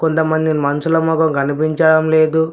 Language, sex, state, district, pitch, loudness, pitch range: Telugu, male, Telangana, Mahabubabad, 160 Hz, -15 LUFS, 155-160 Hz